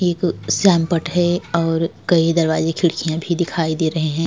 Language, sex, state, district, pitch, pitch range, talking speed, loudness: Hindi, female, Uttar Pradesh, Jalaun, 165 Hz, 160-175 Hz, 170 wpm, -18 LUFS